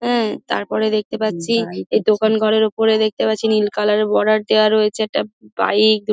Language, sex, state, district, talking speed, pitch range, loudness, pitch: Bengali, female, West Bengal, Dakshin Dinajpur, 185 wpm, 210-220 Hz, -17 LUFS, 215 Hz